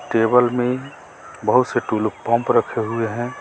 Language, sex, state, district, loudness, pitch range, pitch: Hindi, male, Jharkhand, Garhwa, -20 LUFS, 115-125 Hz, 115 Hz